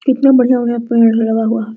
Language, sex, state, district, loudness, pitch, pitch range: Hindi, female, Bihar, Araria, -12 LUFS, 235 Hz, 225-250 Hz